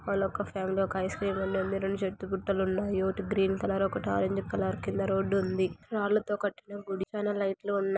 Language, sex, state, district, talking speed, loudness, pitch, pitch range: Telugu, female, Andhra Pradesh, Anantapur, 180 wpm, -31 LUFS, 195 Hz, 190-200 Hz